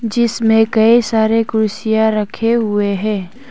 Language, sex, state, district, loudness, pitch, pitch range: Hindi, female, Arunachal Pradesh, Papum Pare, -15 LUFS, 220 Hz, 215-230 Hz